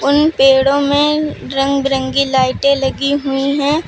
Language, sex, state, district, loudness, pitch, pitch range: Hindi, female, Uttar Pradesh, Lucknow, -14 LUFS, 275 Hz, 270-285 Hz